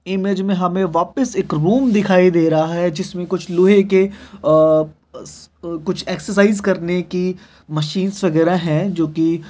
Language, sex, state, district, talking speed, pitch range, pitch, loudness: Hindi, male, Chhattisgarh, Bilaspur, 160 wpm, 165-190 Hz, 180 Hz, -17 LUFS